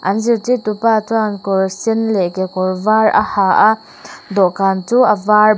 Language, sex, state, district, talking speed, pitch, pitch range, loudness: Mizo, female, Mizoram, Aizawl, 160 wpm, 210 Hz, 195-220 Hz, -15 LUFS